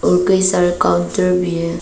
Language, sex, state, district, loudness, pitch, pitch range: Hindi, female, Arunachal Pradesh, Papum Pare, -15 LUFS, 175 Hz, 170-180 Hz